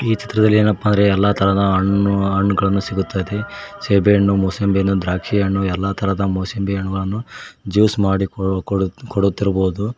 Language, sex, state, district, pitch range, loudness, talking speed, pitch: Kannada, male, Karnataka, Koppal, 95-100 Hz, -18 LUFS, 120 wpm, 100 Hz